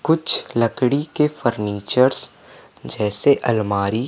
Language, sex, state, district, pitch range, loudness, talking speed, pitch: Hindi, male, Madhya Pradesh, Umaria, 105-140 Hz, -18 LUFS, 90 wpm, 120 Hz